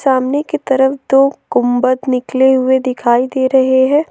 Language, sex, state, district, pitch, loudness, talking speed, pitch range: Hindi, female, Jharkhand, Ranchi, 260 Hz, -13 LUFS, 160 wpm, 255-270 Hz